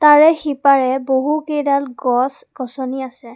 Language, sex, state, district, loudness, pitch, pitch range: Assamese, female, Assam, Kamrup Metropolitan, -16 LUFS, 270 Hz, 260-295 Hz